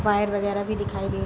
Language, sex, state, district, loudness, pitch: Hindi, female, Bihar, Gopalganj, -25 LUFS, 200 Hz